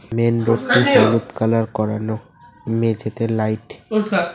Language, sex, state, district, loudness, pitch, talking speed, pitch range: Bengali, male, West Bengal, Cooch Behar, -19 LUFS, 115 Hz, 110 wpm, 110-115 Hz